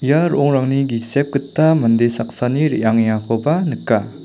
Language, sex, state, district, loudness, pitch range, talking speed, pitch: Garo, male, Meghalaya, South Garo Hills, -17 LUFS, 115-145 Hz, 115 wpm, 135 Hz